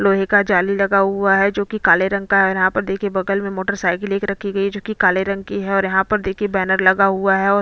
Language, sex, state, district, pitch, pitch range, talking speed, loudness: Hindi, female, Chhattisgarh, Bastar, 195 Hz, 190-200 Hz, 305 wpm, -17 LUFS